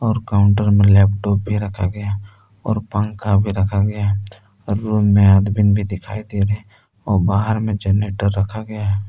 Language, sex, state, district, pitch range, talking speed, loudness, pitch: Hindi, male, Jharkhand, Palamu, 100-105 Hz, 185 wpm, -18 LUFS, 100 Hz